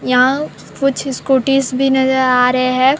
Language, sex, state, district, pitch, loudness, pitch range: Hindi, male, Chhattisgarh, Sukma, 265 Hz, -14 LUFS, 255-270 Hz